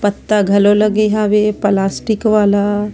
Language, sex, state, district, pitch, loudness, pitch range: Chhattisgarhi, female, Chhattisgarh, Sarguja, 210 Hz, -14 LUFS, 205-215 Hz